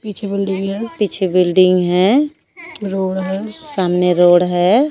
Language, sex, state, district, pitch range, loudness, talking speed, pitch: Hindi, female, Chhattisgarh, Raipur, 180-215 Hz, -15 LUFS, 120 wpm, 195 Hz